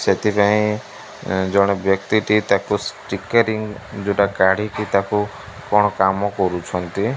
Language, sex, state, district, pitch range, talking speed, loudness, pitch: Odia, male, Odisha, Malkangiri, 95-105 Hz, 85 wpm, -19 LUFS, 100 Hz